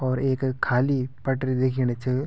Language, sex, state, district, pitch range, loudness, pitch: Garhwali, male, Uttarakhand, Tehri Garhwal, 130-135 Hz, -25 LUFS, 130 Hz